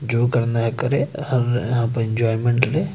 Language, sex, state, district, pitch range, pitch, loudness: Hindi, male, Madhya Pradesh, Bhopal, 115-130 Hz, 120 Hz, -20 LUFS